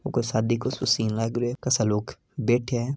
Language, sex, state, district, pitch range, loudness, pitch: Hindi, male, Rajasthan, Nagaur, 115-130 Hz, -25 LUFS, 120 Hz